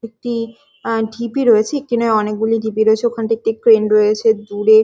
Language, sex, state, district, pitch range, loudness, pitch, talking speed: Bengali, female, West Bengal, Jhargram, 220-230 Hz, -16 LUFS, 225 Hz, 160 wpm